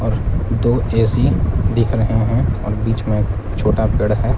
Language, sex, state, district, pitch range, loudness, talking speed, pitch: Hindi, male, Jharkhand, Palamu, 105-115 Hz, -18 LUFS, 165 wpm, 110 Hz